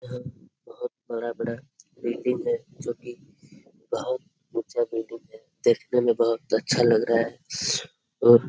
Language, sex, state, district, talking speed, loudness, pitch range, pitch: Hindi, male, Bihar, Jamui, 140 wpm, -26 LUFS, 115-130 Hz, 120 Hz